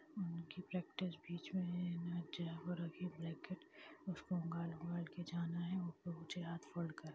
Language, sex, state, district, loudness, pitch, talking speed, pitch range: Hindi, female, Bihar, Gaya, -46 LUFS, 175 Hz, 75 wpm, 170-180 Hz